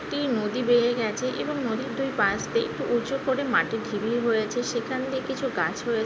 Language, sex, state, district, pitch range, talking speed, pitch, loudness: Bengali, female, West Bengal, Jhargram, 230-265 Hz, 210 wpm, 245 Hz, -26 LUFS